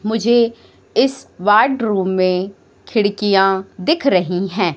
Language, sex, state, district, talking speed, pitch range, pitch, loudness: Hindi, female, Madhya Pradesh, Katni, 100 wpm, 190-230 Hz, 205 Hz, -16 LUFS